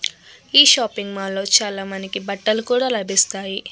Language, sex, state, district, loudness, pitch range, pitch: Telugu, female, Andhra Pradesh, Krishna, -17 LUFS, 195-225 Hz, 200 Hz